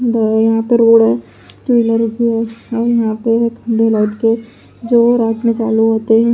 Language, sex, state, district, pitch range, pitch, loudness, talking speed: Hindi, female, Punjab, Pathankot, 225-235 Hz, 230 Hz, -14 LUFS, 170 wpm